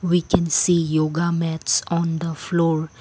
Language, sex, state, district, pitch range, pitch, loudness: English, female, Assam, Kamrup Metropolitan, 160-170 Hz, 165 Hz, -21 LUFS